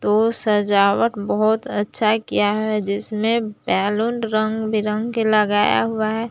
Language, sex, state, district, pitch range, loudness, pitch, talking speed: Hindi, female, Jharkhand, Palamu, 205-225 Hz, -19 LUFS, 215 Hz, 135 wpm